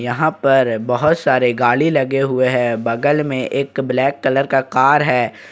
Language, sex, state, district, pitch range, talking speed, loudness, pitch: Hindi, male, Jharkhand, Ranchi, 125-140 Hz, 175 wpm, -16 LUFS, 130 Hz